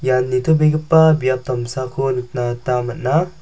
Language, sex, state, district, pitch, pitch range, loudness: Garo, male, Meghalaya, South Garo Hills, 130 Hz, 125-155 Hz, -17 LUFS